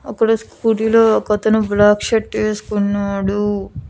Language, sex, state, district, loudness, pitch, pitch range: Telugu, female, Andhra Pradesh, Annamaya, -16 LUFS, 210 Hz, 205-220 Hz